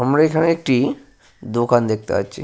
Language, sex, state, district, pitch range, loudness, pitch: Bengali, male, Jharkhand, Sahebganj, 120-155 Hz, -18 LUFS, 125 Hz